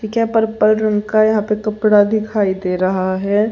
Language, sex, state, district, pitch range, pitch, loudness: Hindi, female, Haryana, Jhajjar, 205-215 Hz, 215 Hz, -16 LUFS